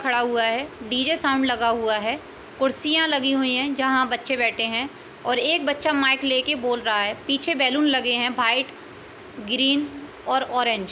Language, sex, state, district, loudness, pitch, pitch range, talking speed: Hindi, female, Uttar Pradesh, Etah, -22 LUFS, 260 Hz, 240-280 Hz, 180 wpm